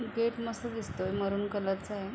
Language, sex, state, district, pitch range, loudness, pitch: Marathi, female, Maharashtra, Aurangabad, 195-230 Hz, -34 LUFS, 205 Hz